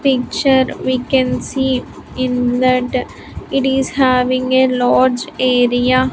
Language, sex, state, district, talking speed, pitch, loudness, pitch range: English, female, Andhra Pradesh, Sri Satya Sai, 115 wpm, 255 Hz, -15 LUFS, 250-265 Hz